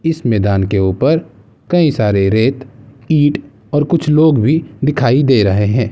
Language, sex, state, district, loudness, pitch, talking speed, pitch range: Hindi, male, Bihar, Gaya, -13 LUFS, 135 Hz, 160 wpm, 105-150 Hz